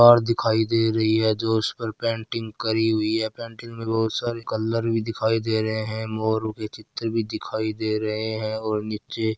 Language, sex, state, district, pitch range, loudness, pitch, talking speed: Marwari, male, Rajasthan, Churu, 110-115 Hz, -24 LUFS, 110 Hz, 205 wpm